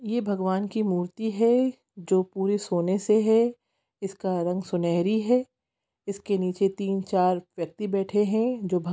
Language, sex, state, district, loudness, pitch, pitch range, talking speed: Hindi, female, Chhattisgarh, Sukma, -25 LUFS, 195 Hz, 185-220 Hz, 160 wpm